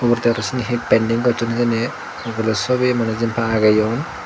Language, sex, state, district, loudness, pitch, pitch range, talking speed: Chakma, male, Tripura, Dhalai, -19 LUFS, 115 Hz, 115-120 Hz, 170 wpm